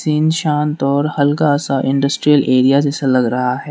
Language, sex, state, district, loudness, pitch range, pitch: Hindi, male, Manipur, Imphal West, -15 LUFS, 135-150 Hz, 140 Hz